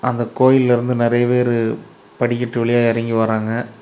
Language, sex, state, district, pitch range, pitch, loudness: Tamil, male, Tamil Nadu, Kanyakumari, 115-125 Hz, 120 Hz, -17 LUFS